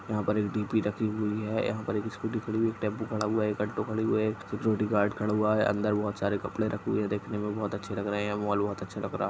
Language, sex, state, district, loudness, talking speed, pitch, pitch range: Hindi, male, Chhattisgarh, Kabirdham, -30 LUFS, 285 wpm, 105 Hz, 105-110 Hz